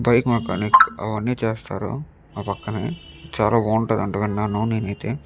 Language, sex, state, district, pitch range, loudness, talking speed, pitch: Telugu, male, Andhra Pradesh, Chittoor, 105-120 Hz, -21 LUFS, 115 wpm, 110 Hz